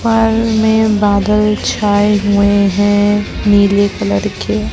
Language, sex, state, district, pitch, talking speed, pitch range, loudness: Hindi, male, Chhattisgarh, Raipur, 205 Hz, 115 wpm, 200-210 Hz, -12 LUFS